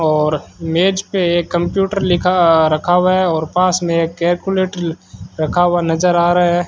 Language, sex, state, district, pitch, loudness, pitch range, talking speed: Hindi, male, Rajasthan, Bikaner, 175 Hz, -15 LUFS, 165-180 Hz, 180 wpm